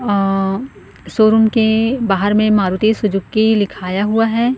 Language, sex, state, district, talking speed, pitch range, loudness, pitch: Hindi, female, Chhattisgarh, Korba, 130 wpm, 195-225 Hz, -15 LUFS, 215 Hz